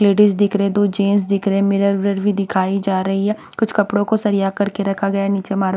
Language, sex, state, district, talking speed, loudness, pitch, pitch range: Hindi, female, Punjab, Pathankot, 280 wpm, -17 LUFS, 200 Hz, 195-205 Hz